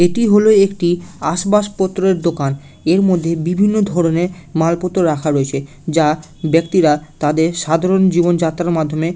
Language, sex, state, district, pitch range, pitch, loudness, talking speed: Bengali, male, West Bengal, Malda, 155-185 Hz, 170 Hz, -15 LUFS, 120 wpm